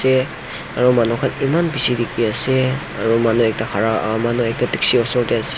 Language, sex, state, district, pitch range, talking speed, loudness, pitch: Nagamese, male, Nagaland, Dimapur, 115-130 Hz, 185 wpm, -17 LUFS, 120 Hz